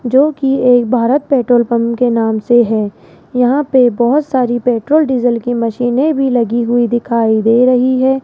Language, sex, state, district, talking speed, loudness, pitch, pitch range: Hindi, female, Rajasthan, Jaipur, 180 wpm, -13 LUFS, 245 Hz, 235-260 Hz